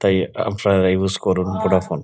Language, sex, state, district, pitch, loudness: Bengali, male, West Bengal, Kolkata, 95 Hz, -19 LUFS